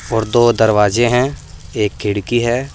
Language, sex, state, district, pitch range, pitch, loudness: Hindi, male, Uttar Pradesh, Saharanpur, 105-120 Hz, 115 Hz, -15 LUFS